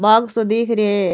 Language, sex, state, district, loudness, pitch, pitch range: Rajasthani, female, Rajasthan, Nagaur, -17 LUFS, 220 Hz, 205-230 Hz